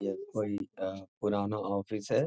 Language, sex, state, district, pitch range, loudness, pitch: Hindi, male, Bihar, Jamui, 95-105 Hz, -34 LUFS, 100 Hz